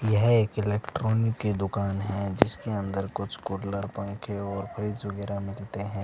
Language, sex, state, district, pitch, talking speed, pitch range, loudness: Hindi, male, Rajasthan, Bikaner, 100 Hz, 160 wpm, 100-105 Hz, -28 LUFS